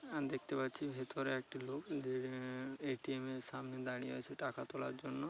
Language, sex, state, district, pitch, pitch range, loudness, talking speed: Bengali, male, West Bengal, Paschim Medinipur, 130 Hz, 130-135 Hz, -43 LUFS, 170 wpm